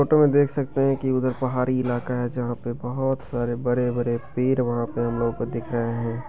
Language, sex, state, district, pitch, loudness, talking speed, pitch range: Maithili, male, Bihar, Begusarai, 125 Hz, -24 LUFS, 240 wpm, 120-130 Hz